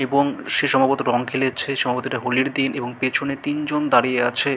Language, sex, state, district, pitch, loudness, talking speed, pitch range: Bengali, male, West Bengal, Malda, 135 Hz, -21 LUFS, 195 wpm, 125-140 Hz